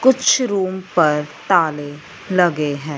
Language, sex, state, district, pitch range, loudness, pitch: Hindi, male, Punjab, Fazilka, 150-195 Hz, -17 LUFS, 170 Hz